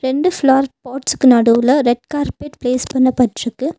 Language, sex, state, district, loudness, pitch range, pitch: Tamil, female, Tamil Nadu, Nilgiris, -15 LUFS, 245-280 Hz, 260 Hz